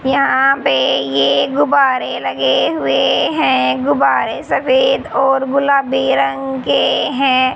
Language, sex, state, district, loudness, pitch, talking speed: Hindi, female, Haryana, Charkhi Dadri, -14 LUFS, 265 Hz, 110 wpm